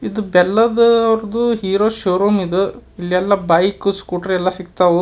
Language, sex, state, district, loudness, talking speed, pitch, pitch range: Kannada, male, Karnataka, Dharwad, -16 LUFS, 130 wpm, 195 Hz, 180-220 Hz